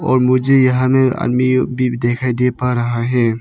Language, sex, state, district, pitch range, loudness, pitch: Hindi, male, Arunachal Pradesh, Papum Pare, 120-130 Hz, -15 LUFS, 125 Hz